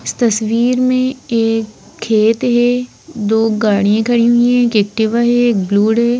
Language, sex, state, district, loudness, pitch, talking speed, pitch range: Hindi, female, Madhya Pradesh, Bhopal, -14 LUFS, 230 Hz, 165 wpm, 220-245 Hz